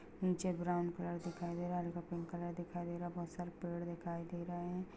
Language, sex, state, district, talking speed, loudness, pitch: Hindi, female, Bihar, Darbhanga, 240 wpm, -42 LUFS, 175 Hz